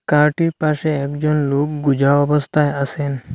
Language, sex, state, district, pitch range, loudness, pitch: Bengali, male, Assam, Hailakandi, 140-150 Hz, -18 LUFS, 150 Hz